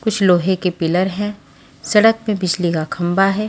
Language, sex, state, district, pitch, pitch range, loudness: Hindi, female, Maharashtra, Washim, 190 Hz, 175-205 Hz, -17 LUFS